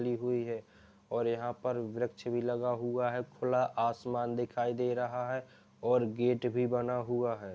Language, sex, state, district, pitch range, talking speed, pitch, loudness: Hindi, male, Uttar Pradesh, Jalaun, 120-125 Hz, 185 wpm, 120 Hz, -34 LUFS